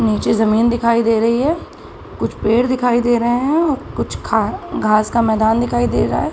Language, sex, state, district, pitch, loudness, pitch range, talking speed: Hindi, female, Bihar, Araria, 235 Hz, -16 LUFS, 220-245 Hz, 210 wpm